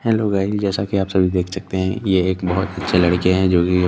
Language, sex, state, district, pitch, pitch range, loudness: Hindi, male, Chandigarh, Chandigarh, 95 Hz, 90-95 Hz, -18 LUFS